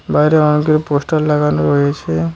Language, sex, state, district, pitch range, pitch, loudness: Bengali, male, West Bengal, Cooch Behar, 140-155 Hz, 150 Hz, -14 LUFS